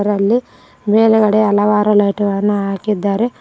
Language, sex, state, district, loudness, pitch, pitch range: Kannada, female, Karnataka, Koppal, -14 LUFS, 210 Hz, 205-215 Hz